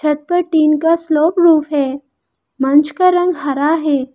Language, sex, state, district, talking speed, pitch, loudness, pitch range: Hindi, female, Arunachal Pradesh, Lower Dibang Valley, 175 wpm, 305 Hz, -14 LUFS, 285-335 Hz